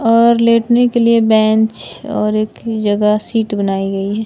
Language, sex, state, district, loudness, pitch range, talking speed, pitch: Hindi, male, Bihar, West Champaran, -14 LUFS, 210-230 Hz, 170 wpm, 220 Hz